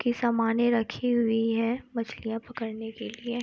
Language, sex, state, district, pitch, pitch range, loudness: Hindi, female, Uttar Pradesh, Etah, 230 Hz, 225-240 Hz, -28 LUFS